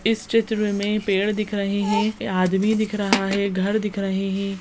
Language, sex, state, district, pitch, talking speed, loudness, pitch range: Hindi, female, Goa, North and South Goa, 205 Hz, 195 wpm, -22 LUFS, 195-215 Hz